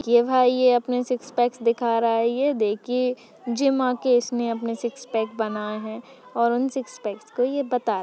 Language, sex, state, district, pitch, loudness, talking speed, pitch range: Hindi, female, Chhattisgarh, Sukma, 240 Hz, -23 LUFS, 185 wpm, 230-250 Hz